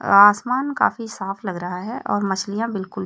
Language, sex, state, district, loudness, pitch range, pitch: Hindi, female, Chhattisgarh, Raipur, -21 LUFS, 190-230 Hz, 205 Hz